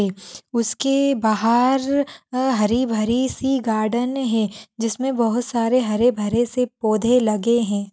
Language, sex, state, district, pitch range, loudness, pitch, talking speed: Hindi, female, Uttar Pradesh, Hamirpur, 220-255 Hz, -20 LUFS, 235 Hz, 130 wpm